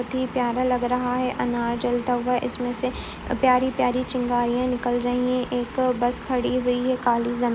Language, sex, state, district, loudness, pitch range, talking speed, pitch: Hindi, female, Uttar Pradesh, Etah, -24 LUFS, 245-255 Hz, 190 wpm, 250 Hz